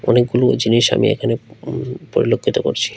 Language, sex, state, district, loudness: Bengali, male, Tripura, West Tripura, -17 LUFS